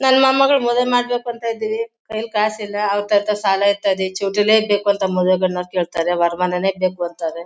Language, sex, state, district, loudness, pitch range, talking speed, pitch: Kannada, female, Karnataka, Mysore, -18 LUFS, 185-225 Hz, 170 wpm, 205 Hz